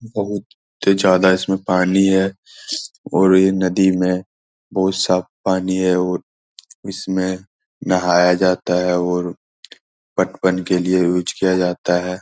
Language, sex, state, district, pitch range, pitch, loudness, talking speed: Hindi, male, Bihar, Lakhisarai, 90-95 Hz, 95 Hz, -18 LUFS, 130 wpm